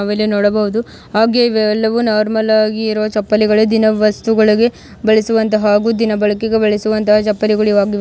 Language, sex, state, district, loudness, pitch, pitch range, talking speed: Kannada, female, Karnataka, Mysore, -14 LUFS, 215 Hz, 210-220 Hz, 140 wpm